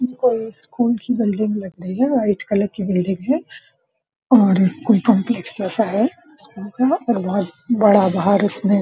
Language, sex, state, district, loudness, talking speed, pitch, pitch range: Hindi, female, Bihar, Purnia, -18 LUFS, 170 wpm, 210 Hz, 195-240 Hz